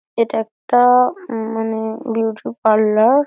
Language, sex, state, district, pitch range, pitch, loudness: Bengali, female, West Bengal, Dakshin Dinajpur, 220-245 Hz, 225 Hz, -17 LUFS